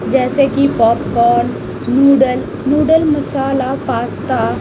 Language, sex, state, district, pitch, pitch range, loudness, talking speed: Hindi, female, Chhattisgarh, Raipur, 270 Hz, 250-280 Hz, -14 LUFS, 105 wpm